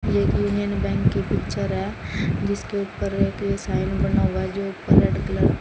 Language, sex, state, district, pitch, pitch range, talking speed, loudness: Hindi, female, Haryana, Jhajjar, 100 Hz, 95-100 Hz, 205 wpm, -23 LUFS